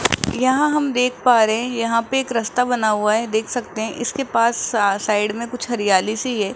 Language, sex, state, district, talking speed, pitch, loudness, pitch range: Hindi, female, Rajasthan, Jaipur, 220 wpm, 230 Hz, -19 LUFS, 215-250 Hz